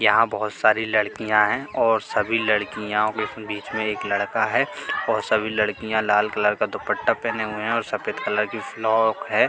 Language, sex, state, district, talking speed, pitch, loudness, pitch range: Hindi, male, Bihar, Katihar, 175 wpm, 110 Hz, -22 LUFS, 105-110 Hz